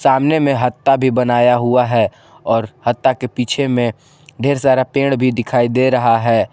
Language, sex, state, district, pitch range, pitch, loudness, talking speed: Hindi, male, Jharkhand, Garhwa, 120-135 Hz, 125 Hz, -15 LUFS, 185 wpm